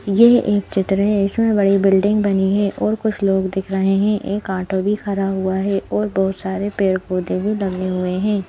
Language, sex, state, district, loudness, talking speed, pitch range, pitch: Hindi, female, Madhya Pradesh, Bhopal, -18 LUFS, 205 wpm, 190-205 Hz, 195 Hz